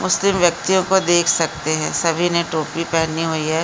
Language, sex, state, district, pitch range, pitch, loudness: Hindi, female, Uttarakhand, Uttarkashi, 160-175 Hz, 165 Hz, -18 LUFS